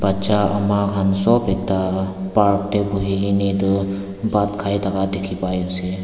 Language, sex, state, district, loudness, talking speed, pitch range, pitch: Nagamese, male, Nagaland, Dimapur, -19 LUFS, 160 wpm, 95-100 Hz, 100 Hz